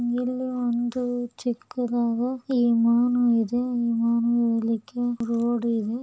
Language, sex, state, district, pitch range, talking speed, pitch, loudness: Kannada, female, Karnataka, Belgaum, 235-245 Hz, 90 wpm, 240 Hz, -24 LUFS